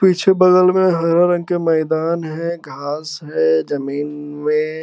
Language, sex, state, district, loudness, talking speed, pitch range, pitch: Magahi, male, Bihar, Lakhisarai, -17 LUFS, 150 wpm, 150-175 Hz, 160 Hz